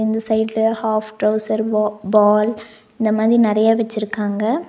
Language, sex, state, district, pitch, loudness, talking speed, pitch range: Tamil, female, Tamil Nadu, Nilgiris, 220 Hz, -18 LUFS, 130 wpm, 215-220 Hz